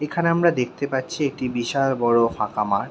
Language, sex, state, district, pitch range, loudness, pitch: Bengali, male, West Bengal, Jhargram, 120-145 Hz, -22 LUFS, 130 Hz